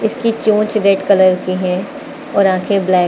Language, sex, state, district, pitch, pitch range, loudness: Hindi, female, Uttar Pradesh, Lucknow, 200 Hz, 185-220 Hz, -14 LUFS